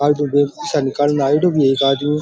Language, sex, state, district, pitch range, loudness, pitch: Rajasthani, male, Rajasthan, Churu, 140-150 Hz, -16 LUFS, 145 Hz